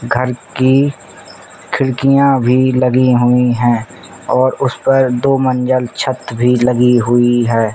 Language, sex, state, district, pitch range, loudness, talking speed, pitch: Hindi, male, Uttar Pradesh, Ghazipur, 120-130 Hz, -13 LUFS, 130 wpm, 125 Hz